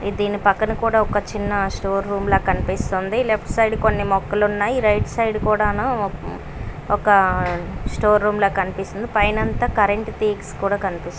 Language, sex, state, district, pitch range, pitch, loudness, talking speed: Telugu, female, Andhra Pradesh, Guntur, 195-215 Hz, 205 Hz, -20 LUFS, 150 wpm